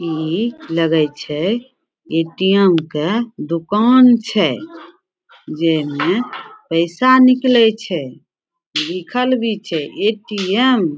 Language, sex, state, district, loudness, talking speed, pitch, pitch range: Maithili, female, Bihar, Samastipur, -16 LUFS, 85 wpm, 215 Hz, 165-255 Hz